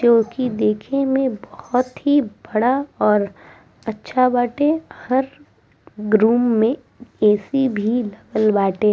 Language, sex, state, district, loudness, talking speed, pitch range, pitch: Bhojpuri, female, Bihar, East Champaran, -19 LUFS, 115 wpm, 215-265 Hz, 240 Hz